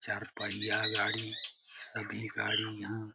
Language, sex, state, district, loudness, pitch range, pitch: Hindi, male, Bihar, Jamui, -33 LUFS, 105-110 Hz, 110 Hz